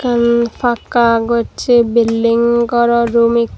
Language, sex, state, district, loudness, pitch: Chakma, female, Tripura, Dhalai, -13 LUFS, 235 Hz